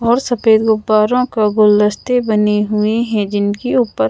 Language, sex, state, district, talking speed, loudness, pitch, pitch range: Hindi, female, Madhya Pradesh, Bhopal, 145 wpm, -14 LUFS, 215 Hz, 210-235 Hz